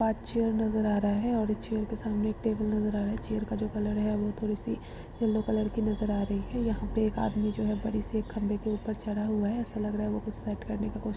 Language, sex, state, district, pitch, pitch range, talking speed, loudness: Hindi, female, Uttar Pradesh, Jalaun, 215 Hz, 210-220 Hz, 275 wpm, -31 LUFS